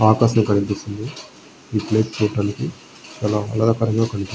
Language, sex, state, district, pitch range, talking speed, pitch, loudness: Telugu, male, Andhra Pradesh, Srikakulam, 105-110 Hz, 110 wpm, 110 Hz, -20 LUFS